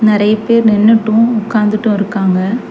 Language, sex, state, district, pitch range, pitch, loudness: Tamil, female, Tamil Nadu, Chennai, 210-225 Hz, 215 Hz, -12 LUFS